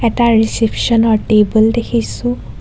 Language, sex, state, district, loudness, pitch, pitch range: Assamese, female, Assam, Kamrup Metropolitan, -14 LUFS, 220 Hz, 155-230 Hz